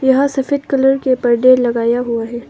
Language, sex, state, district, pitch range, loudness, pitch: Hindi, female, Arunachal Pradesh, Longding, 240-270 Hz, -14 LUFS, 255 Hz